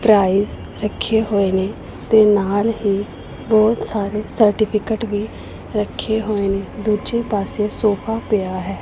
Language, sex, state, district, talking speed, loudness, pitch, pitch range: Punjabi, female, Punjab, Pathankot, 130 wpm, -19 LUFS, 210 Hz, 200-220 Hz